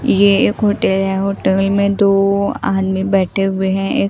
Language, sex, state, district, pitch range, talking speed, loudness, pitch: Hindi, female, Bihar, Katihar, 190-200 Hz, 175 wpm, -15 LUFS, 195 Hz